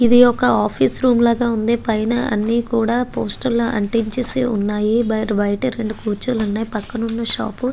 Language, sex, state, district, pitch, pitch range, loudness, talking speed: Telugu, female, Andhra Pradesh, Guntur, 230 Hz, 215-240 Hz, -18 LUFS, 170 wpm